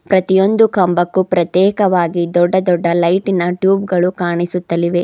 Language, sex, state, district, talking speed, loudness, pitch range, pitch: Kannada, female, Karnataka, Bidar, 105 wpm, -14 LUFS, 175-190 Hz, 180 Hz